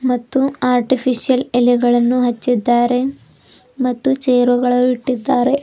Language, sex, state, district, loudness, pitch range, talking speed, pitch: Kannada, female, Karnataka, Bidar, -16 LUFS, 245-260 Hz, 75 wpm, 250 Hz